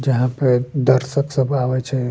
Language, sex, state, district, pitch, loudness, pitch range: Bajjika, male, Bihar, Vaishali, 130 Hz, -18 LUFS, 125-135 Hz